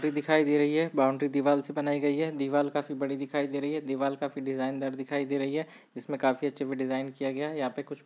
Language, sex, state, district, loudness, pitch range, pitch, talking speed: Hindi, male, Chhattisgarh, Bilaspur, -29 LUFS, 135-145 Hz, 145 Hz, 275 wpm